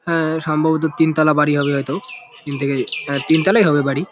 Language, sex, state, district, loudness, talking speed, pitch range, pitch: Bengali, male, West Bengal, Jalpaiguri, -17 LUFS, 175 wpm, 140-160 Hz, 155 Hz